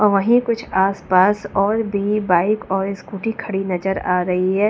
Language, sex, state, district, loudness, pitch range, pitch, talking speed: Hindi, female, Delhi, New Delhi, -19 LUFS, 190-210 Hz, 200 Hz, 180 wpm